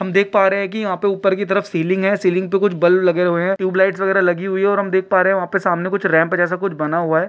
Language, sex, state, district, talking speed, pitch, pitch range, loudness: Hindi, male, Jharkhand, Jamtara, 335 wpm, 190 Hz, 180-195 Hz, -17 LUFS